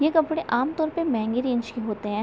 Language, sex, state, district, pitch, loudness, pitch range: Hindi, female, Uttar Pradesh, Gorakhpur, 250 Hz, -25 LUFS, 225-315 Hz